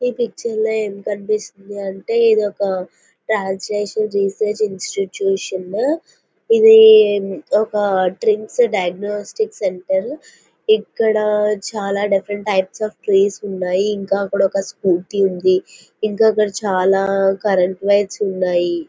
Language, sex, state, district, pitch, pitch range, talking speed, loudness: Telugu, female, Andhra Pradesh, Visakhapatnam, 205 Hz, 195-215 Hz, 110 wpm, -17 LUFS